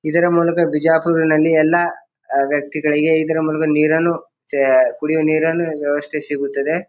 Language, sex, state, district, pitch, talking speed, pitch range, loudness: Kannada, male, Karnataka, Bijapur, 155 Hz, 120 wpm, 150-165 Hz, -17 LUFS